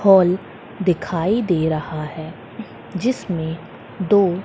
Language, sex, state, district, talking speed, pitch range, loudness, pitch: Hindi, female, Madhya Pradesh, Katni, 95 wpm, 160-195 Hz, -20 LUFS, 180 Hz